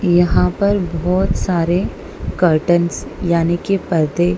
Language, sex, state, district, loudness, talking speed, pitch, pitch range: Hindi, female, Punjab, Kapurthala, -17 LUFS, 110 wpm, 175 Hz, 170-180 Hz